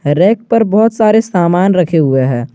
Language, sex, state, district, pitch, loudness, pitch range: Hindi, male, Jharkhand, Garhwa, 180 Hz, -11 LUFS, 155-220 Hz